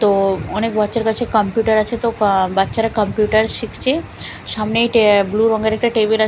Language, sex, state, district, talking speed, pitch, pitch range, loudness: Bengali, female, Bihar, Katihar, 170 wpm, 220 Hz, 210-225 Hz, -17 LUFS